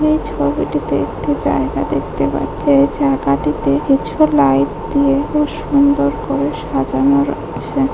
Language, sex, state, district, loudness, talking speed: Bengali, female, West Bengal, Jhargram, -16 LUFS, 130 wpm